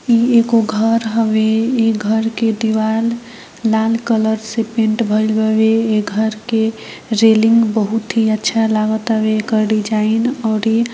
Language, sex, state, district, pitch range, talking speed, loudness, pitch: Hindi, female, Bihar, Gopalganj, 220-225 Hz, 155 wpm, -15 LUFS, 220 Hz